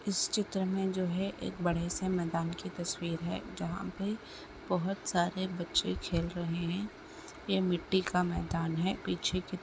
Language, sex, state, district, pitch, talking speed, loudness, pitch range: Hindi, female, Chhattisgarh, Sukma, 180 Hz, 170 wpm, -34 LUFS, 170-190 Hz